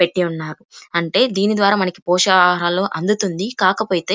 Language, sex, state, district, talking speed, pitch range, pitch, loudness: Telugu, female, Andhra Pradesh, Chittoor, 145 wpm, 175-200 Hz, 185 Hz, -17 LUFS